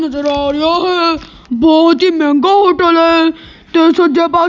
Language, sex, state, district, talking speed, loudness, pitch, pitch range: Punjabi, female, Punjab, Kapurthala, 160 wpm, -11 LUFS, 330 Hz, 315-345 Hz